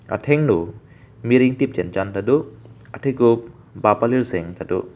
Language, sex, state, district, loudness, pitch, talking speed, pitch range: Karbi, male, Assam, Karbi Anglong, -20 LUFS, 115 Hz, 120 wpm, 100-130 Hz